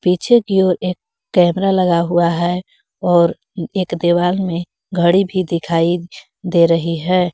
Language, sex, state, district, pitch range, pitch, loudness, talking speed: Hindi, female, Jharkhand, Garhwa, 170-185 Hz, 175 Hz, -16 LUFS, 145 wpm